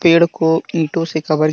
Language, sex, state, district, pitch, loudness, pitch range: Hindi, male, Jharkhand, Deoghar, 165 Hz, -16 LUFS, 155-170 Hz